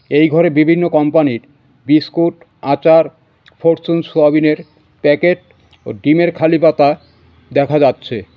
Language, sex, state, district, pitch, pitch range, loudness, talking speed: Bengali, male, West Bengal, Cooch Behar, 155 Hz, 145-165 Hz, -13 LUFS, 105 wpm